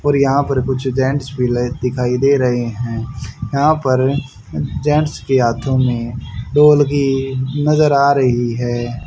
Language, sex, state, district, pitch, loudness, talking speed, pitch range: Hindi, male, Haryana, Charkhi Dadri, 130 Hz, -16 LUFS, 145 wpm, 120-140 Hz